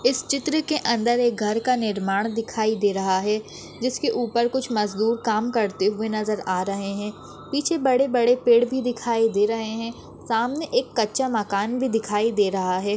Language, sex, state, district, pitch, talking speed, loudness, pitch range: Hindi, female, Maharashtra, Chandrapur, 225 Hz, 190 wpm, -23 LUFS, 210-245 Hz